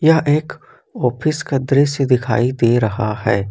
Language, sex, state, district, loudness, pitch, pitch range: Hindi, male, Jharkhand, Ranchi, -17 LUFS, 125 Hz, 120-145 Hz